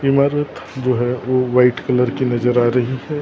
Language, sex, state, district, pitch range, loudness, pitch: Hindi, male, Maharashtra, Gondia, 125-130 Hz, -17 LUFS, 125 Hz